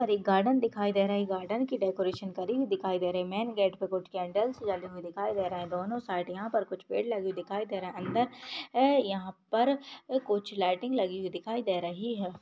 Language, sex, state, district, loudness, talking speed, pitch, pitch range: Hindi, female, Goa, North and South Goa, -31 LUFS, 220 wpm, 195 Hz, 185-230 Hz